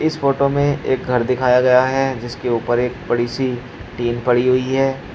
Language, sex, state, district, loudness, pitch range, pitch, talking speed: Hindi, male, Uttar Pradesh, Shamli, -18 LUFS, 120-135 Hz, 125 Hz, 200 wpm